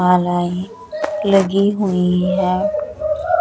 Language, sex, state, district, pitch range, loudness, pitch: Hindi, female, Chandigarh, Chandigarh, 180-300 Hz, -18 LUFS, 195 Hz